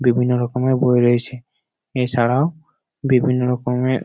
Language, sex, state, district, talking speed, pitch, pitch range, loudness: Bengali, male, West Bengal, Jhargram, 120 wpm, 125 Hz, 125-130 Hz, -19 LUFS